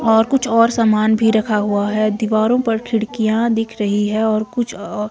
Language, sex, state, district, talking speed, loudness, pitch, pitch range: Hindi, female, Himachal Pradesh, Shimla, 200 wpm, -17 LUFS, 220 Hz, 215-230 Hz